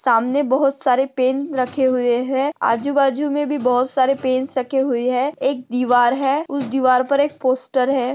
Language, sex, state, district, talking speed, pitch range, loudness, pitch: Hindi, female, Maharashtra, Sindhudurg, 185 wpm, 255-275 Hz, -19 LUFS, 260 Hz